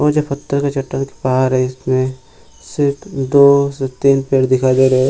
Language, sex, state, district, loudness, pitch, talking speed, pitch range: Hindi, male, Bihar, Jamui, -15 LUFS, 135 Hz, 175 wpm, 130-140 Hz